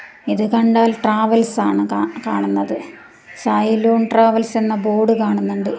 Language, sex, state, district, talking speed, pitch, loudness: Malayalam, female, Kerala, Kasaragod, 105 wpm, 220 Hz, -17 LUFS